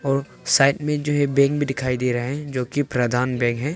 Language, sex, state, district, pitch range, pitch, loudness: Hindi, male, Arunachal Pradesh, Longding, 125-145 Hz, 135 Hz, -21 LUFS